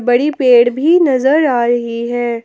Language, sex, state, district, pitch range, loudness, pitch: Hindi, female, Jharkhand, Palamu, 240-280 Hz, -13 LUFS, 245 Hz